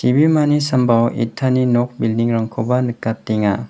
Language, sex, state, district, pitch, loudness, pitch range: Garo, male, Meghalaya, West Garo Hills, 120 Hz, -17 LUFS, 115-130 Hz